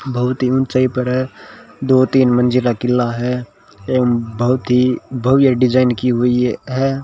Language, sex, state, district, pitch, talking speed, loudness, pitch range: Hindi, male, Rajasthan, Bikaner, 125 Hz, 155 wpm, -16 LUFS, 125-130 Hz